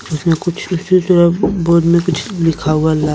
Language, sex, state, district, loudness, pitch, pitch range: Hindi, male, Jharkhand, Deoghar, -14 LUFS, 170 Hz, 160-175 Hz